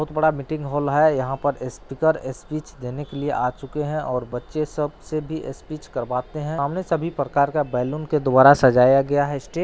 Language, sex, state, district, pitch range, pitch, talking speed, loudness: Hindi, male, Bihar, Araria, 135-155 Hz, 145 Hz, 215 wpm, -22 LUFS